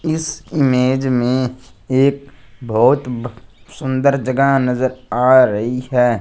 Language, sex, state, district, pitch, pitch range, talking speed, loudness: Hindi, male, Punjab, Fazilka, 130 Hz, 125-135 Hz, 105 wpm, -16 LUFS